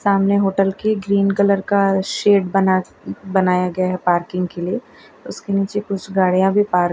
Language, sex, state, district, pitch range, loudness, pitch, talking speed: Hindi, female, Gujarat, Valsad, 185-200 Hz, -18 LUFS, 195 Hz, 180 wpm